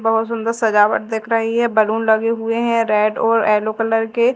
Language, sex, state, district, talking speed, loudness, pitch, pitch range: Hindi, female, Madhya Pradesh, Dhar, 205 wpm, -17 LUFS, 225 Hz, 220-230 Hz